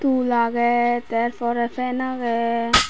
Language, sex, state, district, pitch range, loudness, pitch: Chakma, female, Tripura, Dhalai, 235-250 Hz, -21 LUFS, 240 Hz